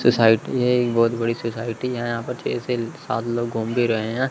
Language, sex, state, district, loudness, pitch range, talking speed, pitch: Hindi, male, Chandigarh, Chandigarh, -22 LUFS, 115-120 Hz, 235 wpm, 115 Hz